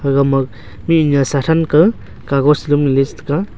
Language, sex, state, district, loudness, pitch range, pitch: Wancho, male, Arunachal Pradesh, Longding, -14 LUFS, 135-155 Hz, 145 Hz